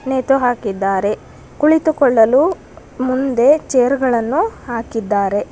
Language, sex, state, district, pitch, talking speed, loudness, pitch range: Kannada, female, Karnataka, Bangalore, 255 Hz, 75 wpm, -16 LUFS, 225-275 Hz